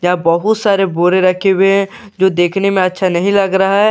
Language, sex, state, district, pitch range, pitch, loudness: Hindi, male, Bihar, Katihar, 180-200 Hz, 190 Hz, -13 LUFS